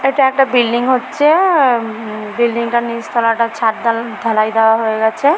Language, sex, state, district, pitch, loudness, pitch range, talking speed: Bengali, female, West Bengal, Kolkata, 235 Hz, -14 LUFS, 225-260 Hz, 200 wpm